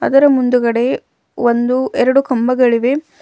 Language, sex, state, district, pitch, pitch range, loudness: Kannada, female, Karnataka, Bidar, 255 Hz, 240-270 Hz, -14 LUFS